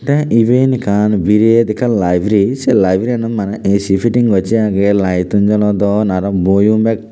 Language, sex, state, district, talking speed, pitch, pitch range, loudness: Chakma, male, Tripura, West Tripura, 170 wpm, 105 Hz, 100-115 Hz, -13 LUFS